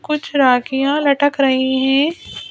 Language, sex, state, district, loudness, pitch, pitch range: Hindi, female, Madhya Pradesh, Bhopal, -16 LUFS, 275 Hz, 265-290 Hz